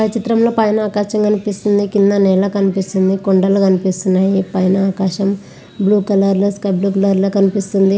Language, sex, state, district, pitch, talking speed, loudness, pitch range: Telugu, female, Andhra Pradesh, Visakhapatnam, 195 Hz, 130 wpm, -15 LUFS, 195-205 Hz